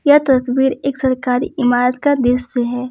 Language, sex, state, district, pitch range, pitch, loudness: Hindi, female, Jharkhand, Ranchi, 250-275 Hz, 255 Hz, -16 LUFS